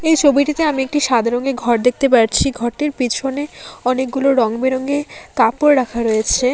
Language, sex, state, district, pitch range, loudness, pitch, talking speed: Bengali, female, West Bengal, Alipurduar, 240-285 Hz, -16 LUFS, 260 Hz, 145 wpm